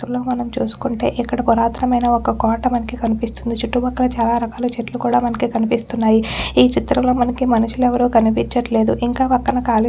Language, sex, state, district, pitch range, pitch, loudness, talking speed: Telugu, female, Telangana, Nalgonda, 230-250 Hz, 240 Hz, -18 LUFS, 180 wpm